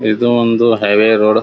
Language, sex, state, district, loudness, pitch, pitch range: Kannada, male, Karnataka, Dharwad, -12 LUFS, 110 Hz, 105-115 Hz